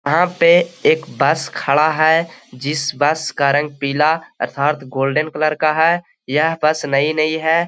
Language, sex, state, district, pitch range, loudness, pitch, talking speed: Hindi, male, Bihar, Gaya, 145-160 Hz, -17 LUFS, 155 Hz, 155 wpm